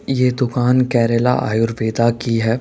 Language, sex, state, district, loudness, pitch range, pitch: Hindi, male, Rajasthan, Jaipur, -17 LUFS, 115-125 Hz, 120 Hz